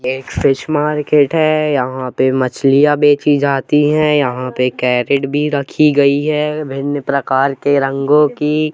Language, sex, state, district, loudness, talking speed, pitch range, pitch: Hindi, male, Jharkhand, Jamtara, -14 LUFS, 160 wpm, 135-150 Hz, 145 Hz